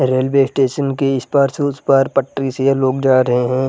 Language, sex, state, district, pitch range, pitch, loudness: Hindi, male, Bihar, Gaya, 130-135 Hz, 135 Hz, -16 LUFS